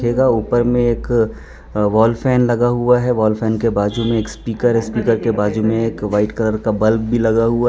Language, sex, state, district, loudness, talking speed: Hindi, female, Arunachal Pradesh, Papum Pare, -17 LUFS, 225 wpm